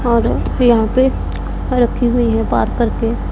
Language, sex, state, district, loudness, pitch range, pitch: Hindi, female, Punjab, Pathankot, -16 LUFS, 230-250 Hz, 240 Hz